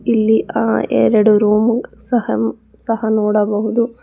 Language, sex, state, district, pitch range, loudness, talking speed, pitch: Kannada, female, Karnataka, Bangalore, 210-230 Hz, -15 LUFS, 105 wpm, 220 Hz